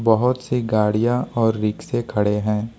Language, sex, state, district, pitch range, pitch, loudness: Hindi, male, Jharkhand, Ranchi, 105-120 Hz, 115 Hz, -21 LUFS